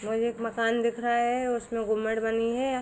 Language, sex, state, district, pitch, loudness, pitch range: Hindi, female, Jharkhand, Sahebganj, 230 Hz, -28 LUFS, 225-240 Hz